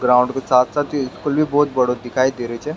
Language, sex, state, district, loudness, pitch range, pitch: Rajasthani, male, Rajasthan, Nagaur, -18 LUFS, 125-145 Hz, 130 Hz